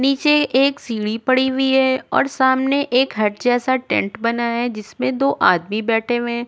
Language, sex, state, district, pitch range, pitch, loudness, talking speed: Hindi, female, Goa, North and South Goa, 220-265 Hz, 245 Hz, -18 LUFS, 185 wpm